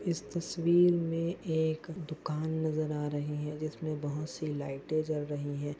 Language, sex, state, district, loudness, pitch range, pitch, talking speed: Hindi, male, Goa, North and South Goa, -33 LUFS, 150-165 Hz, 155 Hz, 165 wpm